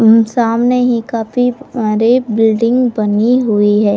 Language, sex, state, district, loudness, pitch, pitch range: Hindi, female, Uttar Pradesh, Muzaffarnagar, -13 LUFS, 230 Hz, 215-245 Hz